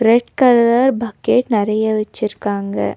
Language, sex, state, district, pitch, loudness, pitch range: Tamil, female, Tamil Nadu, Nilgiris, 220 Hz, -16 LUFS, 210-240 Hz